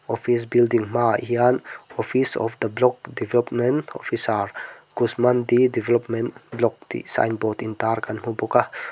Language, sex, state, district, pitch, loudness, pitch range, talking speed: Mizo, male, Mizoram, Aizawl, 120 Hz, -22 LUFS, 115-120 Hz, 140 wpm